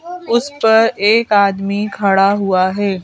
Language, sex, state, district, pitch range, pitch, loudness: Hindi, female, Madhya Pradesh, Bhopal, 195-225 Hz, 205 Hz, -14 LUFS